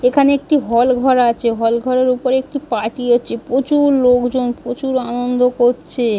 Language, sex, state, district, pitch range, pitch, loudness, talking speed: Bengali, female, West Bengal, Dakshin Dinajpur, 240-265 Hz, 250 Hz, -16 LUFS, 165 wpm